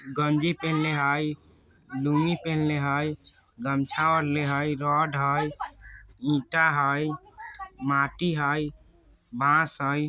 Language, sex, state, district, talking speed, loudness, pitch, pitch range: Bajjika, male, Bihar, Vaishali, 100 wpm, -26 LUFS, 150 Hz, 140-160 Hz